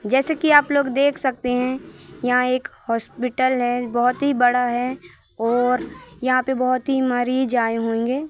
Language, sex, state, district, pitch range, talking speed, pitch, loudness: Hindi, female, Madhya Pradesh, Katni, 245-265 Hz, 165 wpm, 255 Hz, -20 LUFS